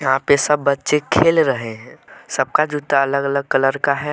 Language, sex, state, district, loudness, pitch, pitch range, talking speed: Hindi, male, Jharkhand, Deoghar, -17 LUFS, 140 Hz, 135-150 Hz, 205 wpm